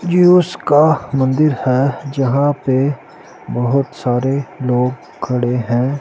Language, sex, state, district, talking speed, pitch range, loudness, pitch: Hindi, male, Punjab, Pathankot, 110 wpm, 125-145 Hz, -16 LUFS, 135 Hz